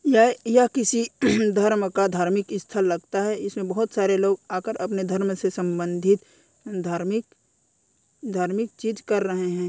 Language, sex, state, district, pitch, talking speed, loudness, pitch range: Hindi, female, Chhattisgarh, Korba, 195 Hz, 150 wpm, -23 LUFS, 185-220 Hz